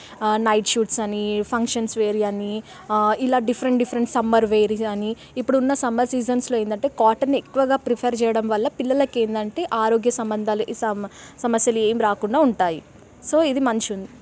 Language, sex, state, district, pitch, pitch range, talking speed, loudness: Telugu, female, Telangana, Nalgonda, 225 Hz, 215-250 Hz, 150 wpm, -21 LUFS